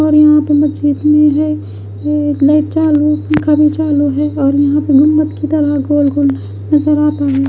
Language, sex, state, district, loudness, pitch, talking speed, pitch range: Hindi, female, Odisha, Khordha, -12 LUFS, 295 Hz, 170 wpm, 285-300 Hz